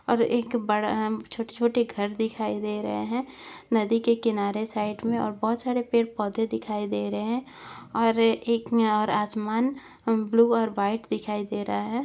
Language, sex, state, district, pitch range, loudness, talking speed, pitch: Hindi, female, Chhattisgarh, Bastar, 210-235 Hz, -26 LUFS, 195 wpm, 225 Hz